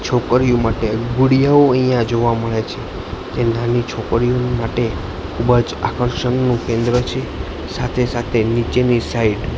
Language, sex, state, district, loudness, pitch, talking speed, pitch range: Gujarati, male, Gujarat, Gandhinagar, -17 LUFS, 120 Hz, 130 wpm, 115-125 Hz